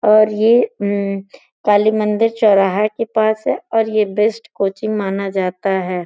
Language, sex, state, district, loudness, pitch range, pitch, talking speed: Hindi, female, Uttar Pradesh, Gorakhpur, -16 LUFS, 195-220 Hz, 210 Hz, 150 wpm